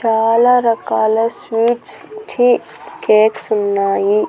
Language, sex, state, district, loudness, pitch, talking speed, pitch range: Telugu, female, Andhra Pradesh, Annamaya, -15 LUFS, 225 Hz, 85 wpm, 215-240 Hz